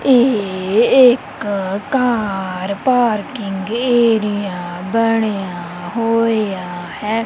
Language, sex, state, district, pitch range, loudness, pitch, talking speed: Punjabi, female, Punjab, Kapurthala, 190-230 Hz, -17 LUFS, 210 Hz, 65 wpm